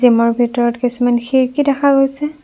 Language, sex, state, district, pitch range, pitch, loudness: Assamese, female, Assam, Kamrup Metropolitan, 240-280 Hz, 250 Hz, -15 LUFS